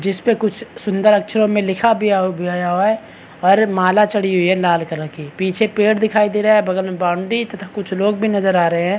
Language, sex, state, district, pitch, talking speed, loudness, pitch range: Hindi, male, Chhattisgarh, Bastar, 200 Hz, 235 wpm, -17 LUFS, 185-215 Hz